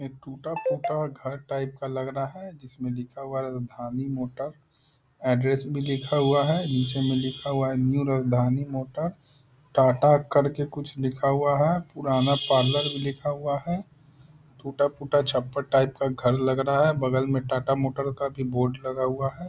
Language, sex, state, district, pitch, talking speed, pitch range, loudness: Hindi, male, Bihar, Muzaffarpur, 135 Hz, 175 wpm, 130-145 Hz, -26 LUFS